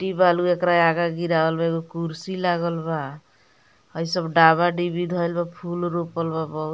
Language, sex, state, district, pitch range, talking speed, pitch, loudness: Bhojpuri, female, Bihar, Muzaffarpur, 165-175 Hz, 180 wpm, 170 Hz, -22 LUFS